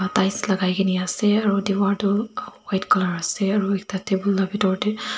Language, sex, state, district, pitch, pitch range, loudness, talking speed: Nagamese, female, Nagaland, Dimapur, 200 Hz, 190-205 Hz, -22 LUFS, 175 wpm